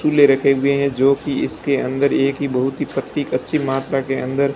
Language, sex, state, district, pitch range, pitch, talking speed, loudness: Hindi, male, Rajasthan, Barmer, 135-140 Hz, 140 Hz, 225 wpm, -18 LUFS